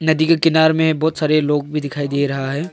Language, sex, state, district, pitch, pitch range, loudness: Hindi, male, Arunachal Pradesh, Longding, 155 Hz, 145-160 Hz, -17 LUFS